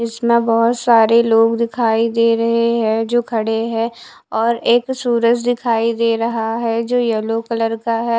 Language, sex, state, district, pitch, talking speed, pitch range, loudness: Hindi, female, Bihar, West Champaran, 230 Hz, 170 wpm, 225-235 Hz, -16 LUFS